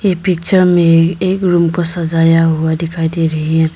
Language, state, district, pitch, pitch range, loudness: Hindi, Arunachal Pradesh, Lower Dibang Valley, 165 Hz, 165-180 Hz, -13 LUFS